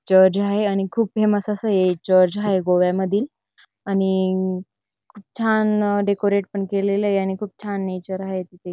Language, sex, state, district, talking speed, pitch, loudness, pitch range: Marathi, female, Maharashtra, Dhule, 150 wpm, 195 Hz, -20 LUFS, 190-205 Hz